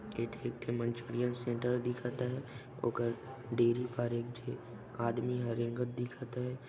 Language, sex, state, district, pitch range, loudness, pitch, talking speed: Chhattisgarhi, male, Chhattisgarh, Sarguja, 120-125 Hz, -37 LUFS, 120 Hz, 150 wpm